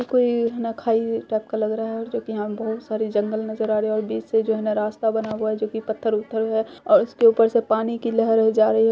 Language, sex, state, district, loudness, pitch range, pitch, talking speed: Hindi, female, Bihar, Purnia, -22 LUFS, 215-230 Hz, 220 Hz, 260 wpm